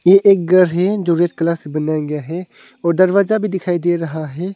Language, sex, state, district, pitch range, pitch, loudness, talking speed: Hindi, male, Arunachal Pradesh, Longding, 165-190 Hz, 175 Hz, -16 LUFS, 235 wpm